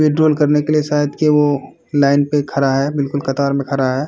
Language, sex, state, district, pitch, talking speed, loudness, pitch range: Hindi, male, Uttar Pradesh, Varanasi, 145 Hz, 235 wpm, -16 LUFS, 140-150 Hz